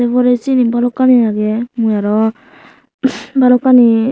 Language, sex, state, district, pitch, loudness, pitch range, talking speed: Chakma, female, Tripura, Unakoti, 245 Hz, -12 LUFS, 225-255 Hz, 115 wpm